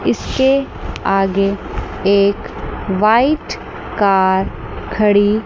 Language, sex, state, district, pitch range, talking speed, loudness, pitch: Hindi, female, Chandigarh, Chandigarh, 195-220 Hz, 65 wpm, -16 LUFS, 200 Hz